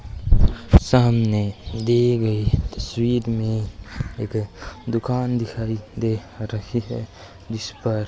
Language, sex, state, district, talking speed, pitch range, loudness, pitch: Hindi, male, Rajasthan, Bikaner, 95 wpm, 105-120 Hz, -22 LUFS, 110 Hz